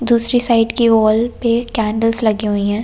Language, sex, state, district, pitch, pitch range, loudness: Hindi, female, Delhi, New Delhi, 230 Hz, 215-235 Hz, -15 LUFS